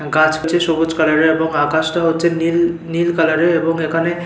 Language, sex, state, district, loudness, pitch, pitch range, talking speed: Bengali, male, West Bengal, Paschim Medinipur, -16 LUFS, 165 Hz, 160-170 Hz, 210 wpm